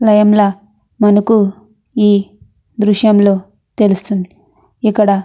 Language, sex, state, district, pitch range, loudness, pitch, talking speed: Telugu, female, Andhra Pradesh, Anantapur, 200-215 Hz, -13 LUFS, 210 Hz, 80 wpm